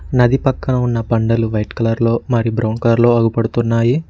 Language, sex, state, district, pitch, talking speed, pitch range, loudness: Telugu, male, Telangana, Mahabubabad, 115 Hz, 160 wpm, 115-120 Hz, -16 LUFS